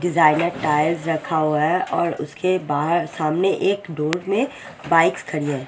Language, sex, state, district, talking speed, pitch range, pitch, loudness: Hindi, female, Odisha, Sambalpur, 160 wpm, 150-175 Hz, 160 Hz, -20 LUFS